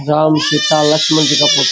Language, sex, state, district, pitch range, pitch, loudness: Rajasthani, male, Rajasthan, Churu, 150-155 Hz, 150 Hz, -11 LUFS